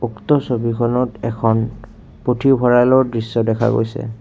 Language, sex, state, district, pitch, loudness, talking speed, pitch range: Assamese, male, Assam, Kamrup Metropolitan, 115 Hz, -17 LUFS, 100 wpm, 115-125 Hz